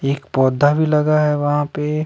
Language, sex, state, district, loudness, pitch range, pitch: Hindi, male, Himachal Pradesh, Shimla, -17 LUFS, 145-150 Hz, 150 Hz